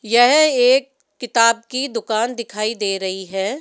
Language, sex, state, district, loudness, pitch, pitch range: Hindi, female, Rajasthan, Jaipur, -18 LUFS, 230 Hz, 215-260 Hz